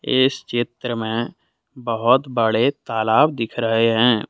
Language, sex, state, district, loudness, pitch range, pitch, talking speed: Hindi, male, Jharkhand, Deoghar, -19 LUFS, 115-125 Hz, 120 Hz, 125 wpm